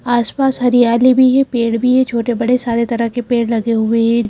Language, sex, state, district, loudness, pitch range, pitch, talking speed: Hindi, female, Madhya Pradesh, Bhopal, -14 LUFS, 230-250 Hz, 240 Hz, 210 wpm